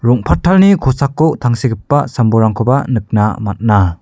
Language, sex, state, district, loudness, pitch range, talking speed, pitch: Garo, male, Meghalaya, South Garo Hills, -13 LUFS, 110-140 Hz, 90 wpm, 120 Hz